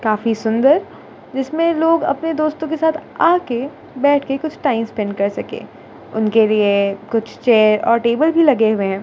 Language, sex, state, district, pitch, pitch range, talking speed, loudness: Hindi, female, Gujarat, Gandhinagar, 250 Hz, 220-315 Hz, 165 wpm, -17 LUFS